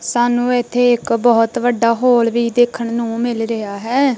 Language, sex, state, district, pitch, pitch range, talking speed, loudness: Punjabi, female, Punjab, Kapurthala, 240 Hz, 230-245 Hz, 170 wpm, -16 LUFS